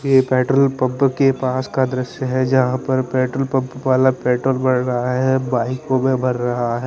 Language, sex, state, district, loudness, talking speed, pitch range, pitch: Hindi, male, Chandigarh, Chandigarh, -18 LUFS, 185 wpm, 125-130 Hz, 130 Hz